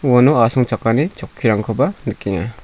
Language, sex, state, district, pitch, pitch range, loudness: Garo, male, Meghalaya, South Garo Hills, 115 Hz, 110-130 Hz, -17 LUFS